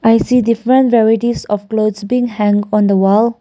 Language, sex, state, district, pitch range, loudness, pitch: English, female, Nagaland, Kohima, 210-240 Hz, -13 LUFS, 225 Hz